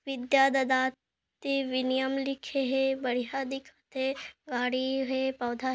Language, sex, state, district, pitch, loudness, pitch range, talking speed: Hindi, female, Chhattisgarh, Kabirdham, 265 Hz, -29 LUFS, 260-270 Hz, 115 wpm